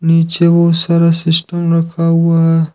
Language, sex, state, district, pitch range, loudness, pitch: Hindi, male, Jharkhand, Ranchi, 165-170 Hz, -12 LUFS, 165 Hz